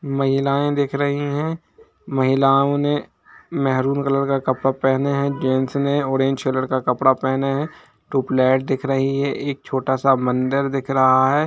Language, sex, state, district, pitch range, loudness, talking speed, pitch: Hindi, male, Jharkhand, Jamtara, 130-140 Hz, -20 LUFS, 160 wpm, 135 Hz